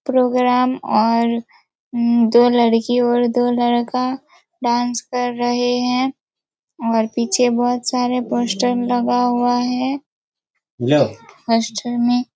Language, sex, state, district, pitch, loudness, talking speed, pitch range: Hindi, female, Chhattisgarh, Raigarh, 245 Hz, -18 LUFS, 110 wpm, 240-250 Hz